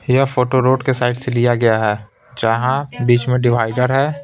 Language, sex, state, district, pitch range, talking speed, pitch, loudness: Hindi, male, Bihar, Patna, 120-130 Hz, 200 wpm, 125 Hz, -16 LUFS